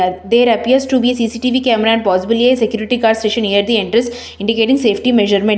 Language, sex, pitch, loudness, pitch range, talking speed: English, female, 225 Hz, -14 LUFS, 215-245 Hz, 215 wpm